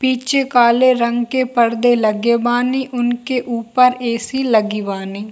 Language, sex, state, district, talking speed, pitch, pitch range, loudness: Hindi, female, Bihar, Kishanganj, 135 wpm, 240 Hz, 230-250 Hz, -16 LUFS